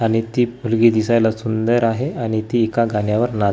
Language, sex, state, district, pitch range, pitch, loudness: Marathi, male, Maharashtra, Gondia, 110-120 Hz, 115 Hz, -18 LUFS